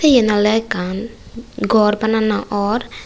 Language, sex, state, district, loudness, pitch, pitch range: Chakma, female, Tripura, West Tripura, -17 LUFS, 220 Hz, 210-230 Hz